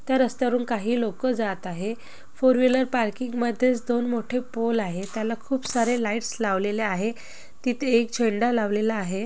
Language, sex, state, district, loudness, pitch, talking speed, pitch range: Marathi, female, Maharashtra, Nagpur, -25 LUFS, 230 Hz, 160 wpm, 220-245 Hz